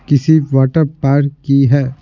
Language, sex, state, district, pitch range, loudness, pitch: Hindi, male, Bihar, Patna, 135-145 Hz, -13 LUFS, 140 Hz